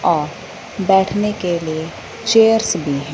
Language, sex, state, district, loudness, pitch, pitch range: Hindi, female, Punjab, Fazilka, -17 LUFS, 190 Hz, 160-215 Hz